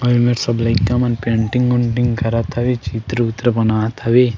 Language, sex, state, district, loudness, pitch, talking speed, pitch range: Chhattisgarhi, male, Chhattisgarh, Sukma, -17 LUFS, 120 Hz, 190 wpm, 115-120 Hz